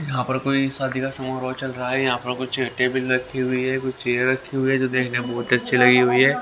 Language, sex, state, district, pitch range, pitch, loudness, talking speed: Hindi, male, Haryana, Rohtak, 125-130 Hz, 130 Hz, -21 LUFS, 270 wpm